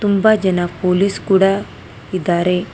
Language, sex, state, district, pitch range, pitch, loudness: Kannada, female, Karnataka, Bangalore, 180-200 Hz, 190 Hz, -16 LUFS